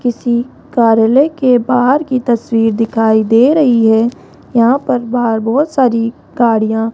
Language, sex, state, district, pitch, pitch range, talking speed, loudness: Hindi, female, Rajasthan, Jaipur, 235 Hz, 225-255 Hz, 145 wpm, -12 LUFS